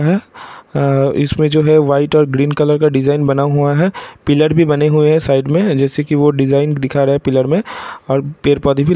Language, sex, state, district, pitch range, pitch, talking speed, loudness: Hindi, male, Bihar, Vaishali, 140-155 Hz, 145 Hz, 220 wpm, -13 LUFS